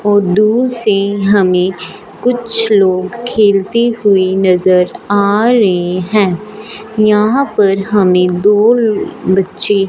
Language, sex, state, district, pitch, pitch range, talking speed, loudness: Hindi, female, Punjab, Fazilka, 205 Hz, 190-215 Hz, 110 wpm, -12 LUFS